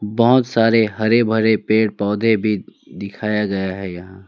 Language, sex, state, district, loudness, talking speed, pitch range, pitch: Hindi, male, West Bengal, Alipurduar, -17 LUFS, 155 wpm, 100-115 Hz, 105 Hz